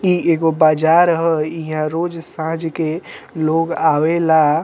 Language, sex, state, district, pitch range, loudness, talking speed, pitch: Bhojpuri, male, Bihar, Muzaffarpur, 155-165 Hz, -17 LUFS, 130 wpm, 160 Hz